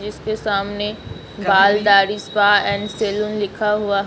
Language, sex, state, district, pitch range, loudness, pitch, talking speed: Hindi, female, Bihar, Samastipur, 200-210 Hz, -18 LUFS, 205 Hz, 145 wpm